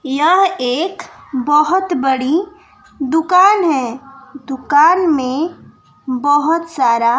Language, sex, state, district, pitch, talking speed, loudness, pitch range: Hindi, female, Bihar, West Champaran, 300 Hz, 85 wpm, -15 LUFS, 270-360 Hz